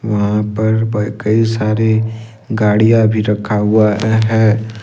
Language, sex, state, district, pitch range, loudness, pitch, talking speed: Hindi, male, Jharkhand, Ranchi, 105-110 Hz, -14 LUFS, 110 Hz, 110 wpm